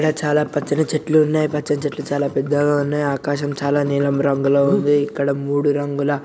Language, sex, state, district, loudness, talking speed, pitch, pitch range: Telugu, male, Telangana, Nalgonda, -19 LUFS, 165 wpm, 145 Hz, 140-150 Hz